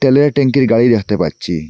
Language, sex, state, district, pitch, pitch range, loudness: Bengali, male, Assam, Hailakandi, 120 Hz, 90-135 Hz, -13 LUFS